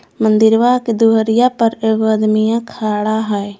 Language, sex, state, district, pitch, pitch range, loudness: Magahi, female, Jharkhand, Palamu, 220 Hz, 215-230 Hz, -14 LUFS